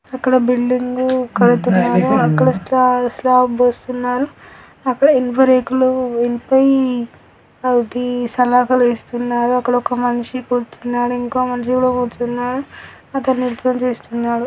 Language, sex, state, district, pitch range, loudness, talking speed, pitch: Telugu, female, Andhra Pradesh, Krishna, 245-255 Hz, -16 LUFS, 105 wpm, 245 Hz